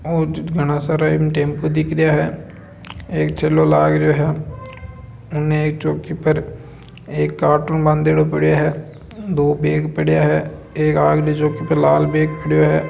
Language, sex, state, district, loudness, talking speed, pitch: Marwari, male, Rajasthan, Nagaur, -17 LUFS, 155 wpm, 150 Hz